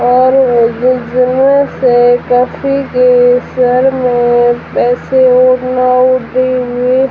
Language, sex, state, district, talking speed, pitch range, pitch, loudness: Hindi, female, Rajasthan, Jaisalmer, 50 wpm, 245-255 Hz, 250 Hz, -10 LUFS